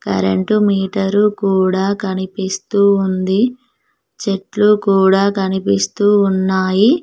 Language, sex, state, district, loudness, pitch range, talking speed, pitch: Telugu, female, Telangana, Mahabubabad, -15 LUFS, 190-205 Hz, 75 wpm, 195 Hz